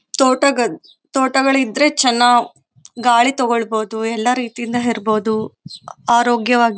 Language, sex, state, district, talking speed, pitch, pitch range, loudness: Kannada, female, Karnataka, Bellary, 80 wpm, 240 Hz, 230-260 Hz, -16 LUFS